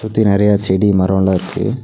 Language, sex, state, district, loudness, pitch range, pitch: Tamil, male, Tamil Nadu, Nilgiris, -14 LUFS, 95-105 Hz, 100 Hz